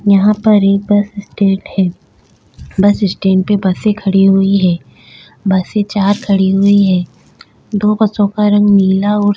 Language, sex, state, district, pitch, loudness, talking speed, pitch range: Hindi, female, Goa, North and South Goa, 200 Hz, -12 LUFS, 165 wpm, 190-205 Hz